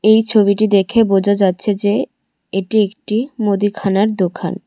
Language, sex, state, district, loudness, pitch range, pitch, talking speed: Bengali, female, Tripura, West Tripura, -15 LUFS, 195-215 Hz, 205 Hz, 130 wpm